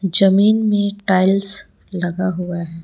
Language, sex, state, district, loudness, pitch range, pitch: Hindi, female, Jharkhand, Palamu, -17 LUFS, 180-200 Hz, 190 Hz